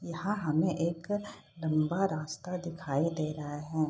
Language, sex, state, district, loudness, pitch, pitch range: Hindi, female, Bihar, Saharsa, -33 LUFS, 165 Hz, 155-175 Hz